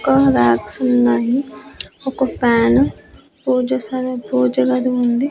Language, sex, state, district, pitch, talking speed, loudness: Telugu, female, Andhra Pradesh, Annamaya, 245 Hz, 90 wpm, -17 LUFS